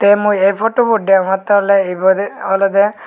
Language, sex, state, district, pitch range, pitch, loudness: Chakma, male, Tripura, Unakoti, 195-205 Hz, 200 Hz, -13 LUFS